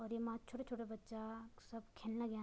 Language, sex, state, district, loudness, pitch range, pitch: Garhwali, female, Uttarakhand, Tehri Garhwal, -48 LUFS, 220-230 Hz, 230 Hz